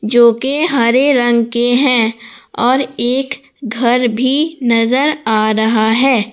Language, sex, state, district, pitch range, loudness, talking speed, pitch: Hindi, female, Jharkhand, Palamu, 230-265 Hz, -13 LUFS, 135 wpm, 240 Hz